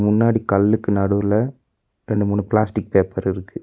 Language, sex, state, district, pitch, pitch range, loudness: Tamil, male, Tamil Nadu, Nilgiris, 105 Hz, 100-110 Hz, -19 LUFS